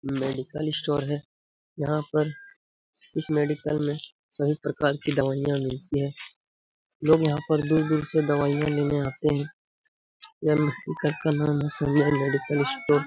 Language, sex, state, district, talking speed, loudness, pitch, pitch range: Hindi, male, Bihar, Lakhisarai, 140 wpm, -26 LUFS, 150 Hz, 145-155 Hz